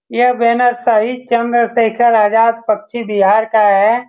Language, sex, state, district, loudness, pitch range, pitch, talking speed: Hindi, male, Bihar, Saran, -13 LUFS, 215-240 Hz, 230 Hz, 130 wpm